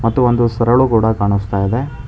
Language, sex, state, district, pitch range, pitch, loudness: Kannada, male, Karnataka, Bangalore, 105-120 Hz, 115 Hz, -15 LUFS